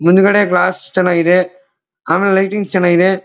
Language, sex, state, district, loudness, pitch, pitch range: Kannada, male, Karnataka, Dharwad, -13 LUFS, 185 Hz, 180-190 Hz